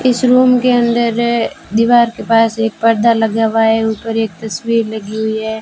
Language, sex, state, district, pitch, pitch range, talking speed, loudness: Hindi, female, Rajasthan, Bikaner, 225 Hz, 220-235 Hz, 205 wpm, -14 LUFS